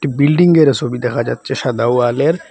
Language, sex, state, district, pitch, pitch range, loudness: Bengali, male, Assam, Hailakandi, 135 Hz, 120-150 Hz, -14 LUFS